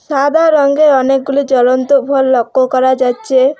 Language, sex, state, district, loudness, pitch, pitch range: Bengali, female, West Bengal, Alipurduar, -11 LUFS, 270 Hz, 260-280 Hz